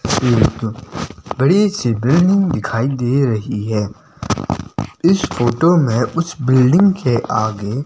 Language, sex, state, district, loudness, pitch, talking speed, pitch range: Hindi, male, Himachal Pradesh, Shimla, -16 LUFS, 125 Hz, 115 wpm, 110-165 Hz